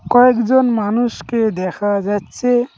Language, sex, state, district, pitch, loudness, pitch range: Bengali, male, West Bengal, Cooch Behar, 230 Hz, -16 LUFS, 205-245 Hz